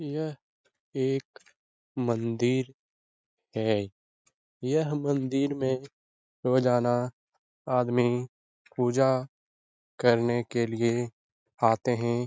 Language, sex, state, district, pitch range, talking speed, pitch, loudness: Hindi, male, Bihar, Lakhisarai, 115-130 Hz, 80 wpm, 125 Hz, -28 LUFS